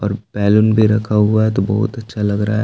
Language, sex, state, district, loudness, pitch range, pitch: Hindi, male, Jharkhand, Palamu, -16 LUFS, 105-110 Hz, 105 Hz